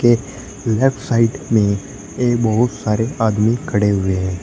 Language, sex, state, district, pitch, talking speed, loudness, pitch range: Hindi, male, Uttar Pradesh, Shamli, 115 Hz, 135 wpm, -17 LUFS, 105-120 Hz